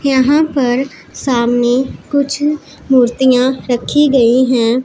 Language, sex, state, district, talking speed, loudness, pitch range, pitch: Hindi, female, Punjab, Pathankot, 100 wpm, -13 LUFS, 245-280 Hz, 260 Hz